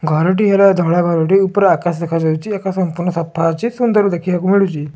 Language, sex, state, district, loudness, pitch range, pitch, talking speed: Odia, male, Odisha, Malkangiri, -15 LUFS, 165-195 Hz, 180 Hz, 180 wpm